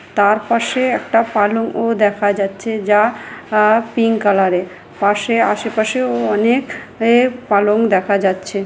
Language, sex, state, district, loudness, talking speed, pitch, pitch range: Bengali, female, West Bengal, Malda, -15 LUFS, 125 wpm, 215 Hz, 205-230 Hz